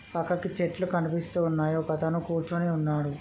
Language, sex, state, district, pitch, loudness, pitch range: Telugu, male, Andhra Pradesh, Srikakulam, 165 Hz, -29 LUFS, 160-175 Hz